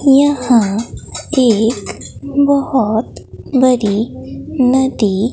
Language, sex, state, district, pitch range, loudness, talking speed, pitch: Hindi, female, Bihar, Katihar, 220-275 Hz, -14 LUFS, 55 wpm, 255 Hz